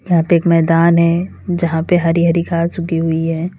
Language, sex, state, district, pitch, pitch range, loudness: Hindi, female, Uttar Pradesh, Lalitpur, 170 Hz, 165-170 Hz, -15 LUFS